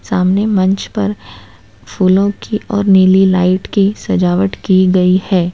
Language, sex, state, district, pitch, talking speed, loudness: Hindi, female, Gujarat, Valsad, 185 Hz, 140 wpm, -13 LUFS